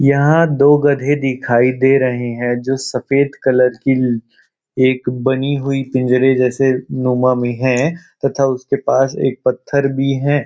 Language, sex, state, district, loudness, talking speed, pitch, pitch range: Hindi, male, Chhattisgarh, Rajnandgaon, -15 LUFS, 150 wpm, 130 Hz, 125-140 Hz